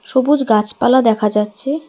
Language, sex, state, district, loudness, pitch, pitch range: Bengali, female, West Bengal, Alipurduar, -15 LUFS, 245 Hz, 210-275 Hz